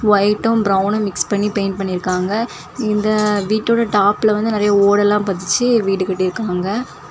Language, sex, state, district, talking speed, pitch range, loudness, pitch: Tamil, female, Tamil Nadu, Kanyakumari, 145 wpm, 195-215 Hz, -17 LUFS, 205 Hz